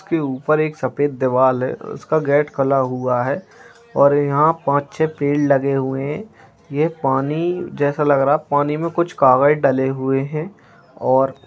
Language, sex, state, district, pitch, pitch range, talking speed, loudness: Hindi, male, Bihar, Bhagalpur, 145 Hz, 135-155 Hz, 185 wpm, -18 LUFS